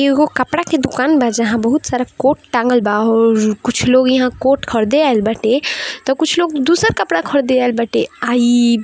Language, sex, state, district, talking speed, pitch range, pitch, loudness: Hindi, female, Bihar, Saran, 195 wpm, 235-280 Hz, 255 Hz, -15 LUFS